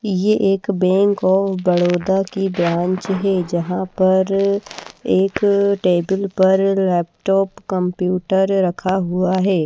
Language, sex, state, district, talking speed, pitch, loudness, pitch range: Hindi, female, Bihar, Patna, 110 wpm, 190 Hz, -18 LUFS, 185-195 Hz